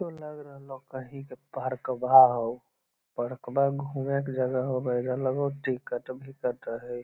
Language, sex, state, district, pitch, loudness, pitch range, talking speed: Magahi, male, Bihar, Lakhisarai, 130 Hz, -27 LUFS, 125-140 Hz, 185 wpm